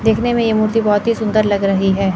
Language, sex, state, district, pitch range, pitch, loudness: Hindi, male, Chandigarh, Chandigarh, 200-225 Hz, 215 Hz, -15 LUFS